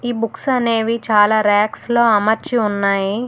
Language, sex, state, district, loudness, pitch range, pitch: Telugu, female, Telangana, Hyderabad, -16 LUFS, 210-235 Hz, 225 Hz